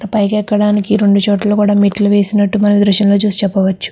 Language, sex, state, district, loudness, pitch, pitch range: Telugu, female, Andhra Pradesh, Guntur, -12 LUFS, 205 Hz, 200-210 Hz